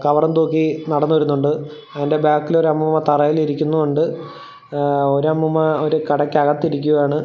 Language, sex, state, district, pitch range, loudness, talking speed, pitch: Malayalam, male, Kerala, Thiruvananthapuram, 145-155 Hz, -17 LUFS, 130 wpm, 150 Hz